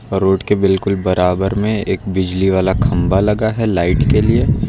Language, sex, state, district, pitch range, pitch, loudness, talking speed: Hindi, male, Uttar Pradesh, Lucknow, 95-105 Hz, 95 Hz, -15 LUFS, 180 wpm